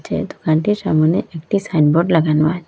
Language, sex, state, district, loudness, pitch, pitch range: Bengali, female, Assam, Hailakandi, -17 LUFS, 165 Hz, 155-180 Hz